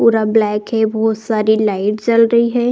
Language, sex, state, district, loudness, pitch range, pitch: Hindi, female, Uttar Pradesh, Jalaun, -15 LUFS, 215-230 Hz, 220 Hz